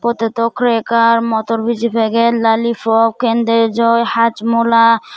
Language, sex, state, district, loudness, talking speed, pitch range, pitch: Chakma, female, Tripura, Dhalai, -14 LUFS, 95 wpm, 225-235 Hz, 230 Hz